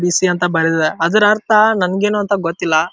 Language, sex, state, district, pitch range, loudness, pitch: Kannada, male, Karnataka, Dharwad, 165-210 Hz, -15 LUFS, 180 Hz